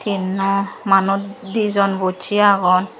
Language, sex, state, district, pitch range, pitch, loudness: Chakma, female, Tripura, Dhalai, 190-200 Hz, 195 Hz, -17 LUFS